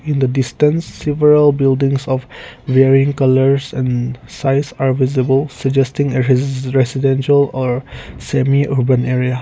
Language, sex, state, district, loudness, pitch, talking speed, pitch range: English, male, Nagaland, Kohima, -15 LUFS, 135 Hz, 125 wpm, 130-140 Hz